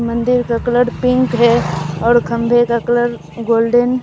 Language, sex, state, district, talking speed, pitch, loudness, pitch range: Hindi, female, Bihar, Katihar, 165 wpm, 235 Hz, -15 LUFS, 235-245 Hz